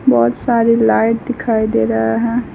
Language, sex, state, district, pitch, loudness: Hindi, female, West Bengal, Alipurduar, 230 Hz, -15 LUFS